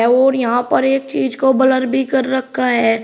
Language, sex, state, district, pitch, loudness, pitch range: Hindi, male, Uttar Pradesh, Shamli, 260 Hz, -15 LUFS, 245-265 Hz